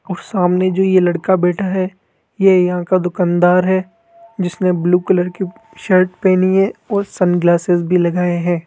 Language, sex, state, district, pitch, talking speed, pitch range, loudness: Hindi, male, Rajasthan, Jaipur, 185 Hz, 165 wpm, 180-190 Hz, -15 LUFS